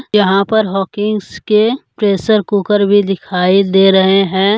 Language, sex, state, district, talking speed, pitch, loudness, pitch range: Hindi, male, Jharkhand, Deoghar, 145 wpm, 200 Hz, -13 LUFS, 195-210 Hz